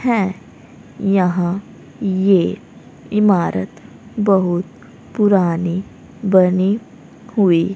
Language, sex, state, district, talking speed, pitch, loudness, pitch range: Hindi, female, Haryana, Rohtak, 60 wpm, 190 Hz, -17 LUFS, 180-205 Hz